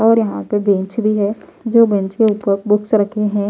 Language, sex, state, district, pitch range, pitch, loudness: Hindi, female, Bihar, Patna, 205-220 Hz, 210 Hz, -16 LUFS